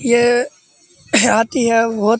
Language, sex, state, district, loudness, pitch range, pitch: Hindi, male, Uttar Pradesh, Muzaffarnagar, -15 LUFS, 225-245 Hz, 235 Hz